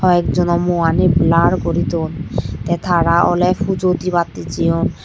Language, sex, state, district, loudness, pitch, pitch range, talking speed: Chakma, male, Tripura, Dhalai, -16 LUFS, 175 Hz, 170-180 Hz, 145 wpm